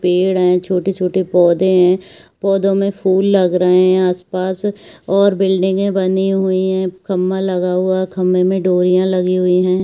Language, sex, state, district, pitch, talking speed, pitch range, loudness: Hindi, female, Chhattisgarh, Bilaspur, 185 Hz, 165 wpm, 180-190 Hz, -15 LUFS